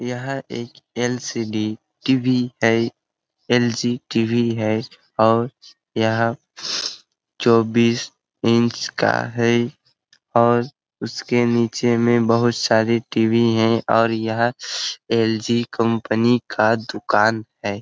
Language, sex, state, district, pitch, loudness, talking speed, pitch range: Hindi, male, Jharkhand, Sahebganj, 115 Hz, -20 LUFS, 100 wpm, 115-120 Hz